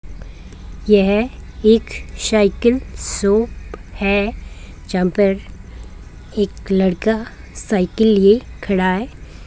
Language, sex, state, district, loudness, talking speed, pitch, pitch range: Hindi, female, Rajasthan, Bikaner, -17 LUFS, 80 wpm, 200 Hz, 185-220 Hz